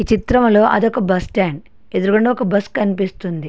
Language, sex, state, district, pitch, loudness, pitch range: Telugu, female, Andhra Pradesh, Srikakulam, 200 Hz, -16 LUFS, 185-225 Hz